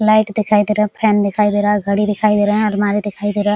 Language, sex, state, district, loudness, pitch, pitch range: Hindi, female, Bihar, Araria, -16 LUFS, 210 Hz, 205-210 Hz